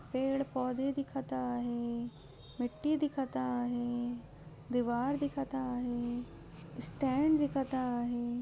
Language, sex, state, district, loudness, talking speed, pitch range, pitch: Marathi, female, Maharashtra, Solapur, -35 LUFS, 95 wpm, 240-270 Hz, 250 Hz